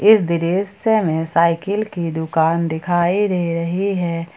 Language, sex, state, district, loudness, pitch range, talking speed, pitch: Hindi, female, Jharkhand, Ranchi, -18 LUFS, 165-195 Hz, 135 wpm, 170 Hz